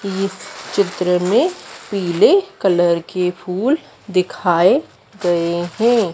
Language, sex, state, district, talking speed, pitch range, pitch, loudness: Hindi, female, Madhya Pradesh, Dhar, 100 wpm, 175-215 Hz, 185 Hz, -17 LUFS